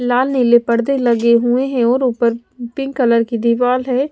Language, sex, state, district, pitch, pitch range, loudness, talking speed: Hindi, female, Punjab, Pathankot, 245 Hz, 235-255 Hz, -15 LUFS, 190 wpm